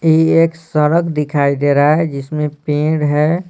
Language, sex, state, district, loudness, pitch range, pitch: Hindi, male, Bihar, Patna, -15 LUFS, 145-160 Hz, 150 Hz